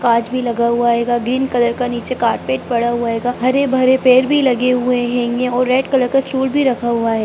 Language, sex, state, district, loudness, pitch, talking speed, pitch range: Hindi, female, Bihar, Sitamarhi, -16 LUFS, 245 Hz, 240 wpm, 235-255 Hz